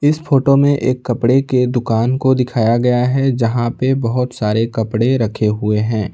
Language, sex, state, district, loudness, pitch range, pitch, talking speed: Hindi, male, Bihar, Patna, -15 LUFS, 115-130 Hz, 125 Hz, 185 wpm